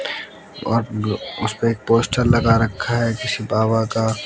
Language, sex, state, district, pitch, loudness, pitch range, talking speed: Hindi, male, Haryana, Jhajjar, 115 Hz, -20 LUFS, 110-120 Hz, 140 wpm